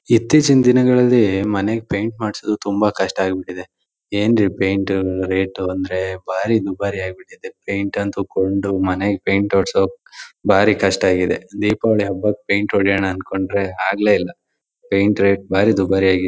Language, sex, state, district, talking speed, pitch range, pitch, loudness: Kannada, male, Karnataka, Shimoga, 135 wpm, 95-105 Hz, 100 Hz, -18 LUFS